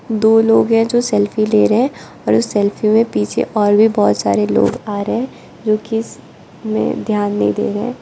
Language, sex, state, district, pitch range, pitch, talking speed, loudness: Hindi, female, Arunachal Pradesh, Lower Dibang Valley, 205-225 Hz, 215 Hz, 185 wpm, -15 LUFS